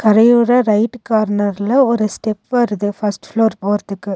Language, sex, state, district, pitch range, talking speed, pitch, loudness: Tamil, female, Tamil Nadu, Nilgiris, 205-235 Hz, 130 wpm, 215 Hz, -15 LUFS